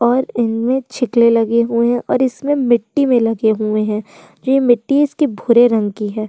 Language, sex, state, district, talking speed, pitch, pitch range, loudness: Hindi, female, Uttar Pradesh, Jyotiba Phule Nagar, 180 wpm, 235 Hz, 225-260 Hz, -15 LUFS